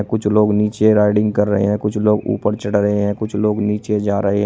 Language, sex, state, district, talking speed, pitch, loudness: Hindi, male, Uttar Pradesh, Shamli, 270 wpm, 105 Hz, -17 LUFS